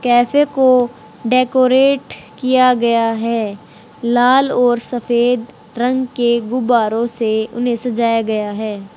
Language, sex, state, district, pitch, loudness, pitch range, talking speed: Hindi, male, Haryana, Rohtak, 240 Hz, -15 LUFS, 225-250 Hz, 115 wpm